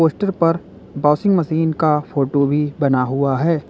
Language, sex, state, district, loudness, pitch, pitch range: Hindi, male, Uttar Pradesh, Lalitpur, -18 LUFS, 150 Hz, 140-165 Hz